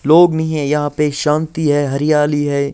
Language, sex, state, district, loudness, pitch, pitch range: Hindi, male, Bihar, Patna, -15 LUFS, 150 Hz, 145-155 Hz